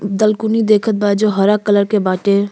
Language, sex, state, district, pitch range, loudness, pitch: Bhojpuri, female, Uttar Pradesh, Ghazipur, 200-215 Hz, -14 LUFS, 210 Hz